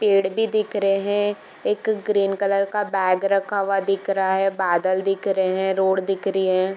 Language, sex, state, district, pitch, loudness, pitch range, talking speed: Hindi, female, Bihar, Darbhanga, 195 Hz, -21 LUFS, 190-200 Hz, 205 wpm